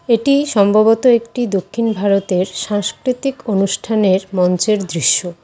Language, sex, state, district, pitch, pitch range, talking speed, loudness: Bengali, female, West Bengal, Cooch Behar, 205 Hz, 190-230 Hz, 100 wpm, -15 LUFS